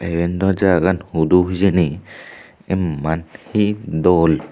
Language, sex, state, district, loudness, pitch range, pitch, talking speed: Chakma, male, Tripura, Unakoti, -18 LUFS, 85-95 Hz, 90 Hz, 105 wpm